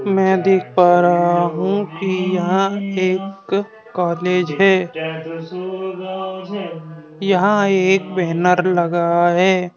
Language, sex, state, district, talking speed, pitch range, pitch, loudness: Hindi, male, Madhya Pradesh, Bhopal, 90 wpm, 175-195 Hz, 185 Hz, -17 LUFS